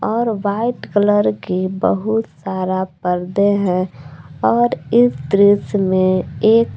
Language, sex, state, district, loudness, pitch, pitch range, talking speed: Hindi, female, Jharkhand, Palamu, -17 LUFS, 195 Hz, 180-215 Hz, 115 wpm